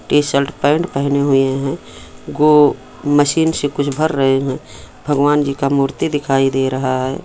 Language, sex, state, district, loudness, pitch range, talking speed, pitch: Hindi, male, Jharkhand, Sahebganj, -16 LUFS, 135-145 Hz, 175 wpm, 140 Hz